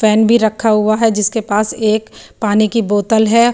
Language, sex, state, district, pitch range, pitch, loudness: Hindi, female, Bihar, Katihar, 215-225 Hz, 220 Hz, -14 LUFS